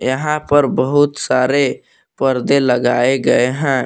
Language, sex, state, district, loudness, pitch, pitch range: Hindi, male, Jharkhand, Palamu, -15 LUFS, 135 Hz, 130-145 Hz